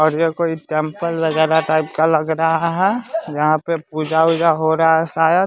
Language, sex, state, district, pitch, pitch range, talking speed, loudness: Hindi, male, Bihar, West Champaran, 160 Hz, 155-165 Hz, 195 wpm, -17 LUFS